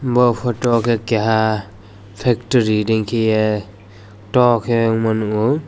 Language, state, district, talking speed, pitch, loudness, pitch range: Kokborok, Tripura, West Tripura, 125 wpm, 110 Hz, -17 LUFS, 105-120 Hz